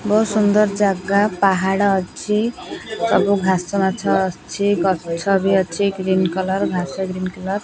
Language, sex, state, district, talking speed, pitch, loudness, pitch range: Odia, female, Odisha, Khordha, 150 wpm, 195 Hz, -19 LUFS, 190-200 Hz